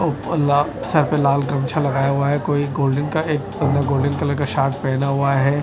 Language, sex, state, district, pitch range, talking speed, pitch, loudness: Hindi, male, Odisha, Nuapada, 140-145 Hz, 225 wpm, 140 Hz, -19 LUFS